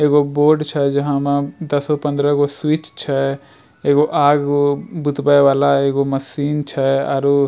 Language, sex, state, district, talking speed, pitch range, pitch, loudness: Angika, male, Bihar, Bhagalpur, 150 wpm, 140-145 Hz, 145 Hz, -17 LUFS